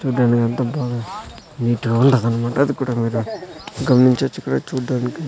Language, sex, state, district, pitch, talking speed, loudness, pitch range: Telugu, male, Andhra Pradesh, Sri Satya Sai, 125 Hz, 150 wpm, -19 LUFS, 115-130 Hz